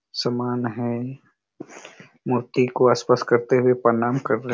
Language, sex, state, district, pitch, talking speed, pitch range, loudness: Hindi, male, Chhattisgarh, Raigarh, 125 Hz, 130 wpm, 120-125 Hz, -21 LUFS